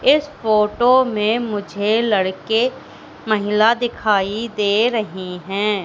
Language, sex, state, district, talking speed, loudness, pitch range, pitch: Hindi, female, Madhya Pradesh, Katni, 100 wpm, -18 LUFS, 205-235 Hz, 215 Hz